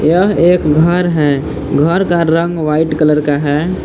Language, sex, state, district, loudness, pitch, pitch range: Hindi, male, Jharkhand, Palamu, -12 LUFS, 160 Hz, 150-175 Hz